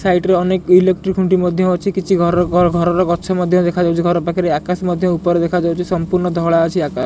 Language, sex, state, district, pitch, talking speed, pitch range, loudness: Odia, male, Odisha, Khordha, 180 Hz, 205 wpm, 170-185 Hz, -15 LUFS